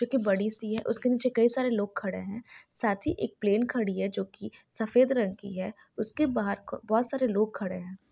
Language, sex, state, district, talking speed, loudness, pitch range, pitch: Hindi, female, Bihar, Jahanabad, 245 wpm, -29 LUFS, 200-245 Hz, 220 Hz